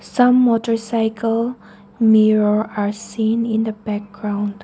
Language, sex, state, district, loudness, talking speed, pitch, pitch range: English, female, Nagaland, Dimapur, -18 LUFS, 105 wpm, 220 Hz, 210-230 Hz